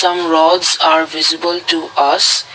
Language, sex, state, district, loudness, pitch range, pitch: English, male, Assam, Kamrup Metropolitan, -12 LUFS, 160-175 Hz, 165 Hz